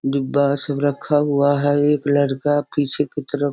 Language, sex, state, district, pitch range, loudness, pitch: Hindi, female, Bihar, Sitamarhi, 140-145 Hz, -19 LUFS, 145 Hz